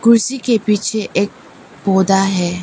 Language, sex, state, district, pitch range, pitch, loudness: Hindi, female, Arunachal Pradesh, Papum Pare, 195-230 Hz, 210 Hz, -16 LUFS